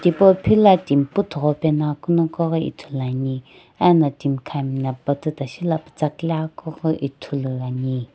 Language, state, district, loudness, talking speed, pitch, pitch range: Sumi, Nagaland, Dimapur, -21 LUFS, 145 wpm, 150 Hz, 135-165 Hz